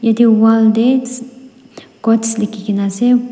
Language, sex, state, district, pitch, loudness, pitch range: Nagamese, female, Nagaland, Dimapur, 230 Hz, -13 LUFS, 220-250 Hz